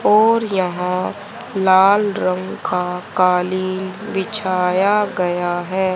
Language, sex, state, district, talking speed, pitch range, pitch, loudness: Hindi, male, Haryana, Rohtak, 90 wpm, 180-205 Hz, 185 Hz, -18 LUFS